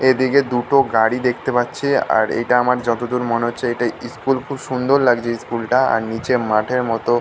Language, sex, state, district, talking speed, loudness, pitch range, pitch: Bengali, male, West Bengal, North 24 Parganas, 190 wpm, -18 LUFS, 120-130 Hz, 125 Hz